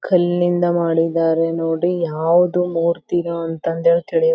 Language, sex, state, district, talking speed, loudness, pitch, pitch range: Kannada, female, Karnataka, Belgaum, 95 wpm, -18 LUFS, 170 Hz, 165-175 Hz